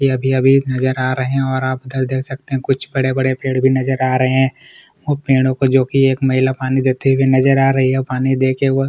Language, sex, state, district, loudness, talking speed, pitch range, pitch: Hindi, male, Chhattisgarh, Kabirdham, -16 LUFS, 265 wpm, 130-135 Hz, 130 Hz